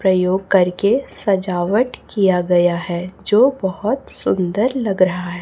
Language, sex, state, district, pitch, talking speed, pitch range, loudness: Hindi, female, Chhattisgarh, Raipur, 185 Hz, 130 wpm, 180-205 Hz, -18 LUFS